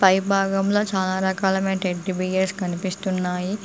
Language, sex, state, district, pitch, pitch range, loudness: Telugu, female, Telangana, Mahabubabad, 190 Hz, 185-195 Hz, -23 LUFS